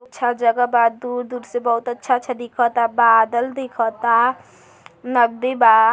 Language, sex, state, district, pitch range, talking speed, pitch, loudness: Bhojpuri, female, Uttar Pradesh, Gorakhpur, 230-250 Hz, 130 wpm, 240 Hz, -18 LUFS